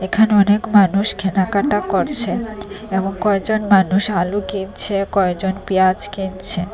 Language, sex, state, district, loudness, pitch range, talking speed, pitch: Bengali, female, Assam, Hailakandi, -17 LUFS, 190-205 Hz, 115 wpm, 195 Hz